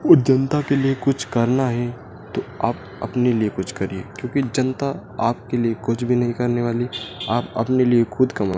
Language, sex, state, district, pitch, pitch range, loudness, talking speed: Hindi, male, Madhya Pradesh, Dhar, 120 Hz, 115-130 Hz, -21 LUFS, 190 wpm